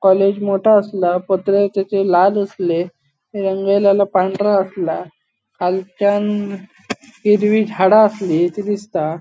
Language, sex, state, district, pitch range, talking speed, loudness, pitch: Konkani, male, Goa, North and South Goa, 185-205 Hz, 90 wpm, -16 LUFS, 195 Hz